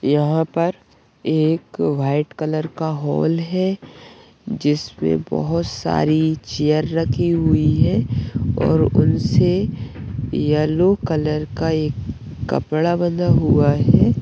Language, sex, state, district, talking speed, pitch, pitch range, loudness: Hindi, male, Bihar, Bhagalpur, 105 wpm, 155 Hz, 145-165 Hz, -19 LUFS